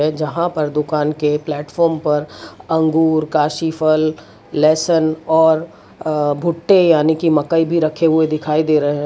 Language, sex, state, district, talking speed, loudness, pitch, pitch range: Hindi, female, Gujarat, Valsad, 145 wpm, -16 LUFS, 155 Hz, 150-160 Hz